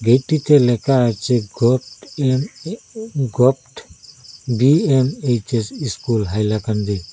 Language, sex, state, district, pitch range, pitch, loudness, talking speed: Bengali, male, Assam, Hailakandi, 115-135 Hz, 125 Hz, -18 LUFS, 85 wpm